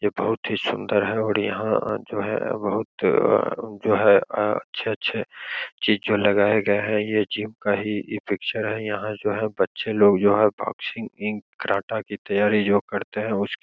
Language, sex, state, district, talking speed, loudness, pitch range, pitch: Hindi, male, Bihar, Begusarai, 185 wpm, -23 LUFS, 105-110 Hz, 105 Hz